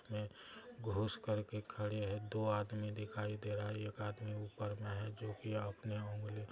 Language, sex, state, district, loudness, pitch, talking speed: Hindi, male, Bihar, Araria, -43 LUFS, 105 Hz, 195 wpm